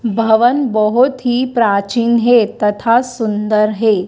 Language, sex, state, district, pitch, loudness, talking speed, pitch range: Hindi, female, Madhya Pradesh, Dhar, 230 Hz, -14 LUFS, 115 wpm, 215-245 Hz